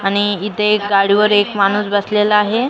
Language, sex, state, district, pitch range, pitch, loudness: Marathi, female, Maharashtra, Mumbai Suburban, 200-210 Hz, 205 Hz, -14 LUFS